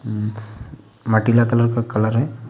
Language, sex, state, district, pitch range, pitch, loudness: Hindi, male, Uttar Pradesh, Varanasi, 110-120 Hz, 115 Hz, -19 LUFS